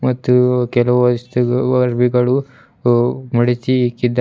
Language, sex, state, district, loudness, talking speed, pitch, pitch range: Kannada, male, Karnataka, Bidar, -16 LUFS, 85 wpm, 125 Hz, 120-125 Hz